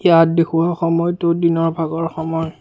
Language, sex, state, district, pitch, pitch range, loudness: Assamese, male, Assam, Kamrup Metropolitan, 165 Hz, 165-170 Hz, -17 LUFS